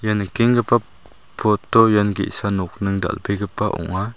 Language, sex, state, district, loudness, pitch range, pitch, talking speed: Garo, male, Meghalaya, South Garo Hills, -19 LUFS, 100-110 Hz, 105 Hz, 115 wpm